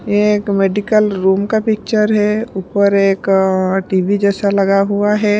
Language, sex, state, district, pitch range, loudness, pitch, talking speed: Hindi, female, Punjab, Pathankot, 195-210 Hz, -14 LUFS, 200 Hz, 165 wpm